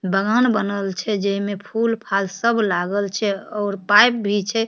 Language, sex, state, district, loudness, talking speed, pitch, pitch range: Maithili, female, Bihar, Supaul, -20 LUFS, 165 wpm, 205 Hz, 195-220 Hz